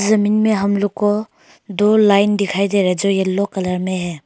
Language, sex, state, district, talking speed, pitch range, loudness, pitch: Hindi, female, Arunachal Pradesh, Longding, 225 wpm, 190-205 Hz, -16 LUFS, 200 Hz